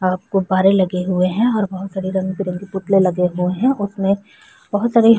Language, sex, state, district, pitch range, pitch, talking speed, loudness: Hindi, female, Bihar, Vaishali, 185-205 Hz, 190 Hz, 195 wpm, -18 LUFS